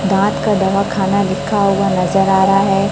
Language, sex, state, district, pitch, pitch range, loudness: Hindi, female, Chhattisgarh, Raipur, 195 Hz, 190-200 Hz, -14 LUFS